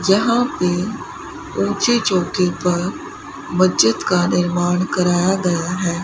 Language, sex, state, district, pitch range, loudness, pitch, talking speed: Hindi, female, Rajasthan, Bikaner, 175-190 Hz, -18 LUFS, 180 Hz, 110 wpm